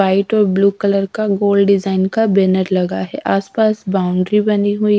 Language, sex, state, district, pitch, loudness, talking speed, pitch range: Hindi, female, Punjab, Fazilka, 200 Hz, -15 LUFS, 190 wpm, 190-210 Hz